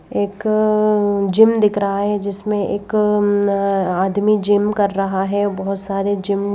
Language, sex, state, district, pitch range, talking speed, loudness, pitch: Hindi, female, Madhya Pradesh, Bhopal, 200-210 Hz, 145 wpm, -17 LUFS, 205 Hz